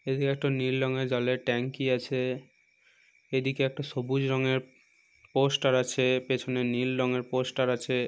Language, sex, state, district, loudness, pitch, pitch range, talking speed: Bengali, male, West Bengal, Purulia, -29 LUFS, 130 Hz, 125-135 Hz, 150 wpm